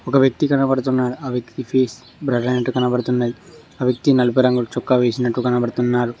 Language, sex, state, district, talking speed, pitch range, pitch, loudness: Telugu, male, Telangana, Mahabubabad, 155 wpm, 125-130 Hz, 125 Hz, -19 LUFS